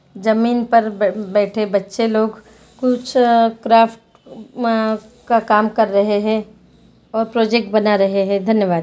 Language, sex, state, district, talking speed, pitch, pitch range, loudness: Hindi, female, Jharkhand, Jamtara, 150 wpm, 220 Hz, 210-230 Hz, -17 LUFS